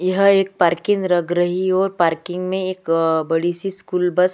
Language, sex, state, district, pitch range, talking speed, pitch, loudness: Hindi, female, Chhattisgarh, Sukma, 175-190 Hz, 205 wpm, 180 Hz, -19 LUFS